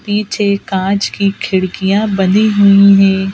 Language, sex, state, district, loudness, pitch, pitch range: Hindi, female, Madhya Pradesh, Bhopal, -12 LUFS, 200 Hz, 195-205 Hz